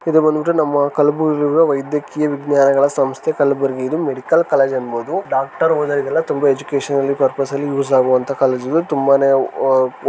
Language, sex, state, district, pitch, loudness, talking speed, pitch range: Kannada, male, Karnataka, Gulbarga, 140 Hz, -16 LUFS, 150 wpm, 135-150 Hz